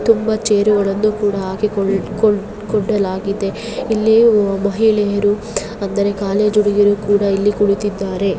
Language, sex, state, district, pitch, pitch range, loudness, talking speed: Kannada, female, Karnataka, Bellary, 205 Hz, 200-215 Hz, -16 LUFS, 100 wpm